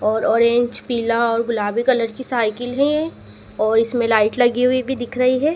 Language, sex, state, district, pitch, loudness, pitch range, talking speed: Hindi, female, Madhya Pradesh, Dhar, 240 Hz, -18 LUFS, 230-255 Hz, 195 wpm